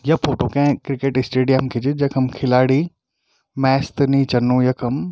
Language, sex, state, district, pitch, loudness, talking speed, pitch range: Garhwali, male, Uttarakhand, Tehri Garhwal, 135 Hz, -18 LUFS, 165 wpm, 130-140 Hz